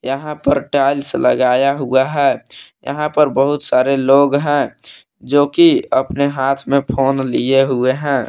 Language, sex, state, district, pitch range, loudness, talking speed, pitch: Hindi, male, Jharkhand, Palamu, 135-145 Hz, -15 LUFS, 145 wpm, 140 Hz